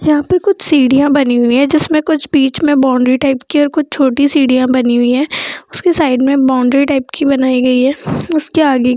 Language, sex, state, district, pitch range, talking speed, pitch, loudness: Hindi, female, Bihar, Jamui, 255-300 Hz, 220 wpm, 275 Hz, -12 LUFS